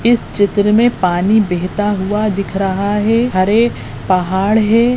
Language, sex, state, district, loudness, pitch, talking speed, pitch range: Hindi, female, Goa, North and South Goa, -14 LUFS, 205 Hz, 145 wpm, 190-220 Hz